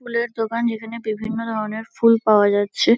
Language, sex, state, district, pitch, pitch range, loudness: Bengali, female, West Bengal, Kolkata, 225 Hz, 215-230 Hz, -20 LUFS